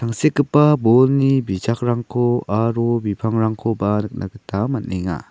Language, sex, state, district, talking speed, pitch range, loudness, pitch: Garo, male, Meghalaya, South Garo Hills, 90 wpm, 105-125 Hz, -18 LUFS, 115 Hz